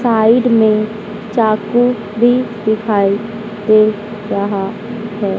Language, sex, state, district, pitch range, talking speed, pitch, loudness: Hindi, female, Madhya Pradesh, Dhar, 210-225 Hz, 90 wpm, 215 Hz, -15 LUFS